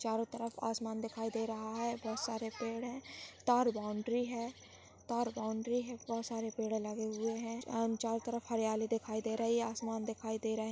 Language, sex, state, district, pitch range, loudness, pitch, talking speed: Hindi, male, Maharashtra, Dhule, 220-235 Hz, -38 LUFS, 225 Hz, 200 wpm